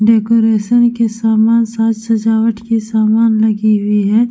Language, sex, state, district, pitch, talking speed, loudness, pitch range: Hindi, female, Uttar Pradesh, Etah, 225 Hz, 125 wpm, -13 LUFS, 220-230 Hz